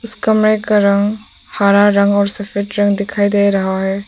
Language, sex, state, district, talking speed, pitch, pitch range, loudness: Hindi, female, Arunachal Pradesh, Papum Pare, 190 wpm, 205 Hz, 200-210 Hz, -14 LUFS